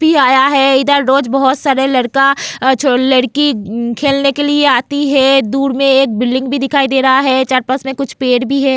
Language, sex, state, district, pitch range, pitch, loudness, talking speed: Hindi, female, Goa, North and South Goa, 260-275 Hz, 270 Hz, -12 LUFS, 205 wpm